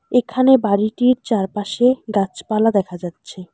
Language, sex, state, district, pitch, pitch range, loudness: Bengali, male, West Bengal, Alipurduar, 215 Hz, 195-245 Hz, -18 LUFS